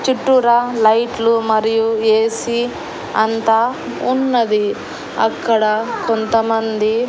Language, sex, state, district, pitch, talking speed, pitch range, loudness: Telugu, female, Andhra Pradesh, Annamaya, 225 Hz, 70 wpm, 220-235 Hz, -16 LUFS